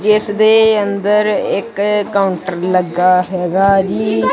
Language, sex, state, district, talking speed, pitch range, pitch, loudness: Punjabi, male, Punjab, Kapurthala, 110 wpm, 185-210 Hz, 200 Hz, -14 LUFS